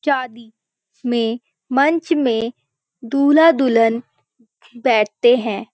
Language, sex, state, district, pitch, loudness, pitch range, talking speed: Hindi, female, Uttarakhand, Uttarkashi, 240 Hz, -17 LUFS, 225-270 Hz, 75 wpm